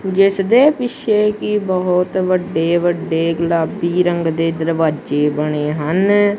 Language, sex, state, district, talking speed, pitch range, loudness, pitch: Punjabi, female, Punjab, Kapurthala, 120 wpm, 165-195 Hz, -16 LUFS, 175 Hz